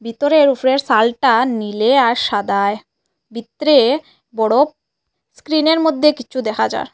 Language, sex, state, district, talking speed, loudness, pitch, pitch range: Bengali, female, Assam, Hailakandi, 110 wpm, -15 LUFS, 255 Hz, 225-300 Hz